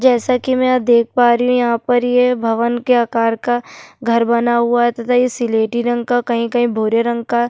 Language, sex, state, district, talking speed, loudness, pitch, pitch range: Hindi, female, Uttarakhand, Tehri Garhwal, 230 wpm, -15 LUFS, 240 Hz, 235-245 Hz